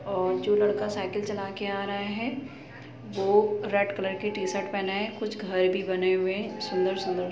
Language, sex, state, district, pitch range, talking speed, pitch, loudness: Hindi, female, Uttar Pradesh, Muzaffarnagar, 190-210 Hz, 195 wpm, 200 Hz, -28 LUFS